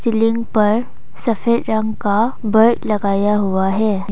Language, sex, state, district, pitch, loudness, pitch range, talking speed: Hindi, female, Arunachal Pradesh, Papum Pare, 220 Hz, -17 LUFS, 205-230 Hz, 130 wpm